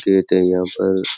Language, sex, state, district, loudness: Rajasthani, male, Rajasthan, Churu, -17 LUFS